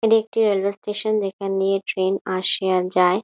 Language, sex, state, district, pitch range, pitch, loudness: Bengali, female, West Bengal, Jhargram, 185-215 Hz, 195 Hz, -21 LUFS